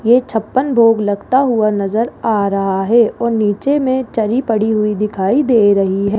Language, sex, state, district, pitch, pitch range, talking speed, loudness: Hindi, female, Rajasthan, Jaipur, 220 Hz, 205-240 Hz, 185 wpm, -14 LUFS